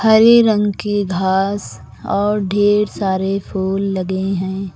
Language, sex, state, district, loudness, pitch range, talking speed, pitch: Hindi, female, Uttar Pradesh, Lucknow, -16 LUFS, 190-205 Hz, 125 wpm, 195 Hz